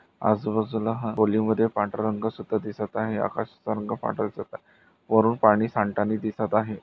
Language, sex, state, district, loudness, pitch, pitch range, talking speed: Marathi, male, Maharashtra, Nagpur, -25 LUFS, 110 Hz, 105-110 Hz, 160 wpm